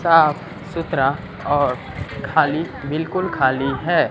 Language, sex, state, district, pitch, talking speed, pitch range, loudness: Hindi, female, Bihar, West Champaran, 155 Hz, 100 wpm, 140-165 Hz, -20 LUFS